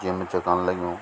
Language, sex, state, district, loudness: Garhwali, male, Uttarakhand, Tehri Garhwal, -25 LUFS